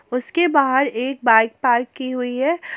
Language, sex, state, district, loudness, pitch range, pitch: Hindi, female, Jharkhand, Garhwa, -18 LUFS, 245-280 Hz, 260 Hz